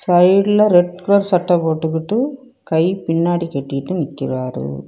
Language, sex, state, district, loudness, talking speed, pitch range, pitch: Tamil, female, Tamil Nadu, Kanyakumari, -17 LUFS, 110 wpm, 160-200 Hz, 175 Hz